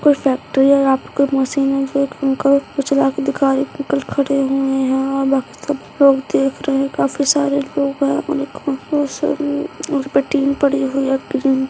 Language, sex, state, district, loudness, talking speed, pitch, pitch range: Hindi, female, Bihar, Madhepura, -17 LUFS, 210 wpm, 275 Hz, 270-280 Hz